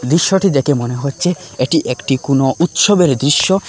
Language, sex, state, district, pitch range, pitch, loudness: Bengali, male, Assam, Hailakandi, 135-180 Hz, 145 Hz, -14 LUFS